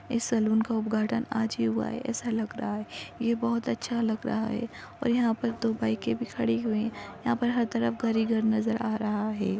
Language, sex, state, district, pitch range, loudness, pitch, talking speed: Hindi, female, Maharashtra, Pune, 215-235 Hz, -29 LUFS, 225 Hz, 230 wpm